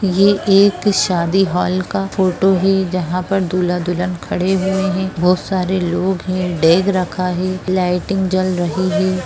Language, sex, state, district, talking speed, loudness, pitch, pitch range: Hindi, female, Bihar, Jamui, 155 wpm, -16 LUFS, 185 Hz, 180-195 Hz